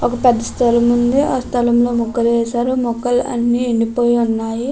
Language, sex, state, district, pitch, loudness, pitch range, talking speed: Telugu, female, Andhra Pradesh, Krishna, 240 Hz, -16 LUFS, 235-245 Hz, 165 wpm